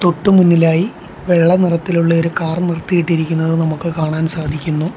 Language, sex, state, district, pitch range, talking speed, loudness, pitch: Malayalam, male, Kerala, Kollam, 160-175 Hz, 120 wpm, -15 LUFS, 165 Hz